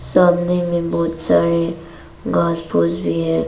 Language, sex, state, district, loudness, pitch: Hindi, female, Arunachal Pradesh, Papum Pare, -17 LUFS, 165 Hz